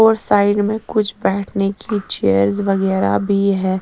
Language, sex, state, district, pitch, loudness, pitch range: Hindi, female, Chandigarh, Chandigarh, 200 Hz, -17 LUFS, 190-210 Hz